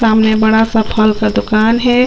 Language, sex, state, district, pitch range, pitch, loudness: Hindi, female, Chhattisgarh, Sukma, 215-225 Hz, 220 Hz, -12 LUFS